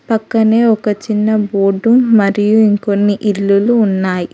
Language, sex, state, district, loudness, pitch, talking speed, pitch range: Telugu, female, Telangana, Hyderabad, -12 LUFS, 210 Hz, 110 wpm, 200-220 Hz